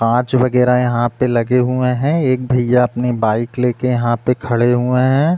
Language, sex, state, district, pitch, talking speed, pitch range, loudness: Hindi, male, Uttar Pradesh, Deoria, 125 Hz, 190 wpm, 120-125 Hz, -16 LUFS